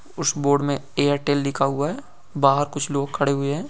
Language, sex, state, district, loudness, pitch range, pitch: Hindi, male, Bihar, Saran, -22 LUFS, 140-145 Hz, 140 Hz